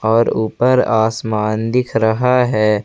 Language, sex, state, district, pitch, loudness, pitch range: Hindi, male, Jharkhand, Ranchi, 115 Hz, -15 LUFS, 110-125 Hz